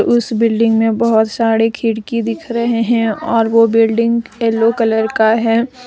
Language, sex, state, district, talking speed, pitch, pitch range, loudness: Hindi, female, Jharkhand, Deoghar, 165 wpm, 230 Hz, 225-235 Hz, -14 LUFS